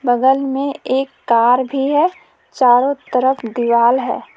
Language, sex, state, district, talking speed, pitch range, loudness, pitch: Hindi, female, Jharkhand, Palamu, 135 wpm, 245-275 Hz, -16 LUFS, 260 Hz